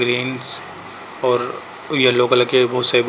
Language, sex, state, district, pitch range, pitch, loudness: Hindi, male, Uttar Pradesh, Muzaffarnagar, 125-130 Hz, 125 Hz, -17 LUFS